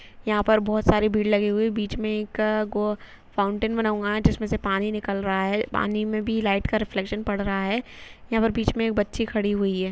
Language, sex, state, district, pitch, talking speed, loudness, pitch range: Hindi, female, Chhattisgarh, Rajnandgaon, 210 Hz, 240 wpm, -24 LUFS, 205-215 Hz